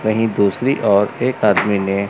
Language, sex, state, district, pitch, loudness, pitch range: Hindi, male, Chandigarh, Chandigarh, 105 Hz, -16 LUFS, 100-120 Hz